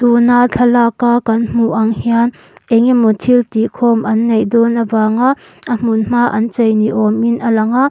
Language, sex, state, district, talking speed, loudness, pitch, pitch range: Mizo, female, Mizoram, Aizawl, 195 wpm, -13 LUFS, 235 Hz, 225-240 Hz